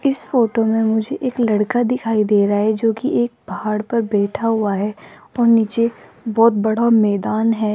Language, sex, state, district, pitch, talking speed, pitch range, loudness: Hindi, female, Rajasthan, Jaipur, 225 Hz, 185 wpm, 215-235 Hz, -18 LUFS